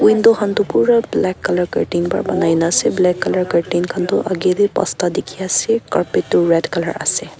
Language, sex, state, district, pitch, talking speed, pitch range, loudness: Nagamese, female, Nagaland, Kohima, 185 Hz, 205 wpm, 175-205 Hz, -16 LUFS